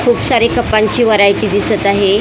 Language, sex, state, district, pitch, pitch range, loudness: Marathi, female, Maharashtra, Mumbai Suburban, 215 Hz, 200-230 Hz, -12 LUFS